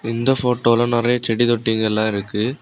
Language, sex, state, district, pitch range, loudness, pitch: Tamil, male, Tamil Nadu, Kanyakumari, 110-120 Hz, -18 LUFS, 115 Hz